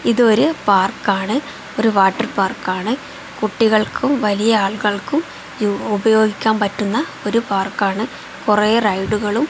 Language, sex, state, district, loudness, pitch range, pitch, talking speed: Malayalam, female, Kerala, Kozhikode, -17 LUFS, 200-230 Hz, 215 Hz, 115 wpm